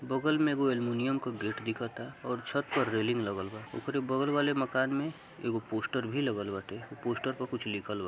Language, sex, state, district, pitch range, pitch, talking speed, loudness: Hindi, male, Uttar Pradesh, Gorakhpur, 115-140 Hz, 125 Hz, 210 wpm, -33 LUFS